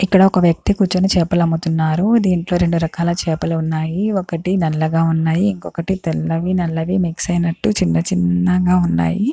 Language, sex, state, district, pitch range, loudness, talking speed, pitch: Telugu, female, Andhra Pradesh, Chittoor, 160-185 Hz, -17 LUFS, 120 wpm, 170 Hz